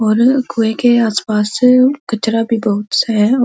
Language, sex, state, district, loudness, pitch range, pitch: Hindi, female, Uttar Pradesh, Muzaffarnagar, -14 LUFS, 215-250 Hz, 225 Hz